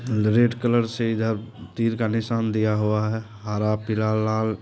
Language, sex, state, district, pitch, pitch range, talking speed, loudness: Hindi, male, Bihar, Purnia, 110 Hz, 110-115 Hz, 170 wpm, -23 LUFS